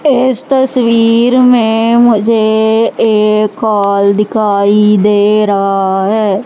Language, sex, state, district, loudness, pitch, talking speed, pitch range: Hindi, male, Madhya Pradesh, Katni, -10 LUFS, 215 Hz, 95 wpm, 205-230 Hz